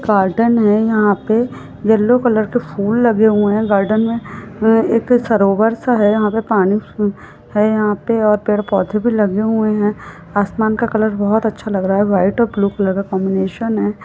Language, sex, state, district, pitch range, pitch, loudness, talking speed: Hindi, female, Bihar, Araria, 205-225 Hz, 210 Hz, -15 LUFS, 155 wpm